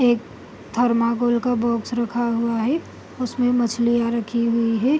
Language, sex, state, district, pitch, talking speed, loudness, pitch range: Hindi, female, Bihar, Gopalganj, 235 Hz, 145 wpm, -21 LUFS, 235-245 Hz